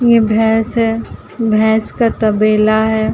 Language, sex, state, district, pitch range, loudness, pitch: Hindi, female, Uttar Pradesh, Jalaun, 215-225 Hz, -14 LUFS, 220 Hz